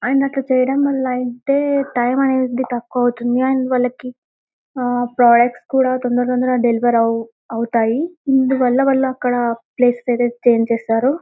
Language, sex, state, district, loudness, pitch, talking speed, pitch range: Telugu, female, Telangana, Karimnagar, -17 LUFS, 250 Hz, 130 wpm, 240-265 Hz